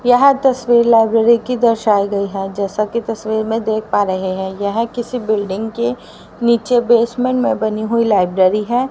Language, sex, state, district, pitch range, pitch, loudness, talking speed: Hindi, female, Haryana, Rohtak, 205-240 Hz, 225 Hz, -16 LUFS, 175 wpm